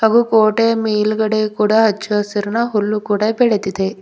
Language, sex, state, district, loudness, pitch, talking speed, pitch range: Kannada, female, Karnataka, Bidar, -16 LUFS, 215 Hz, 105 wpm, 210-220 Hz